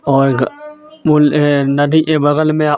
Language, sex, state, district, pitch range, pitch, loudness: Hindi, male, Jharkhand, Deoghar, 145-155 Hz, 150 Hz, -13 LUFS